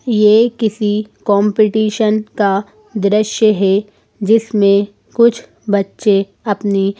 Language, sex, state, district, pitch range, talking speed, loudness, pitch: Hindi, female, Madhya Pradesh, Bhopal, 200-215 Hz, 85 wpm, -14 LUFS, 210 Hz